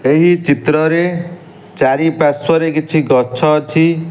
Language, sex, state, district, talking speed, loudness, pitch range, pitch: Odia, male, Odisha, Nuapada, 115 wpm, -13 LUFS, 145-165 Hz, 160 Hz